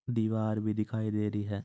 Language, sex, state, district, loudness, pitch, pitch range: Marwari, male, Rajasthan, Churu, -32 LUFS, 110 Hz, 105-110 Hz